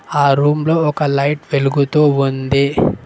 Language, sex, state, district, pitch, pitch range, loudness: Telugu, male, Telangana, Mahabubabad, 145 Hz, 140-150 Hz, -15 LUFS